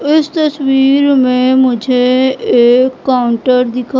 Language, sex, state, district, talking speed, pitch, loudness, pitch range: Hindi, female, Madhya Pradesh, Katni, 105 wpm, 255 Hz, -11 LUFS, 250-270 Hz